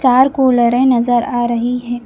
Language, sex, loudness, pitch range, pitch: Hindi, female, -14 LUFS, 240-255 Hz, 245 Hz